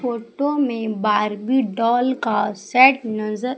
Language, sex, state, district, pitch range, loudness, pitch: Hindi, female, Madhya Pradesh, Umaria, 215-260 Hz, -19 LUFS, 230 Hz